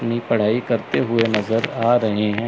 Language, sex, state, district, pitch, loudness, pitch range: Hindi, male, Chandigarh, Chandigarh, 115 Hz, -19 LUFS, 110-115 Hz